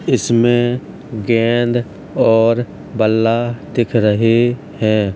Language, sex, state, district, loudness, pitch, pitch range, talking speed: Hindi, male, Uttar Pradesh, Hamirpur, -15 LUFS, 115 Hz, 110-120 Hz, 80 wpm